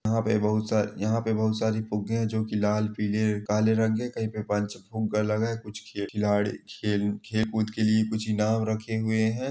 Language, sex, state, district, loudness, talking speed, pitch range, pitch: Hindi, male, Chhattisgarh, Balrampur, -27 LUFS, 210 wpm, 105-110 Hz, 110 Hz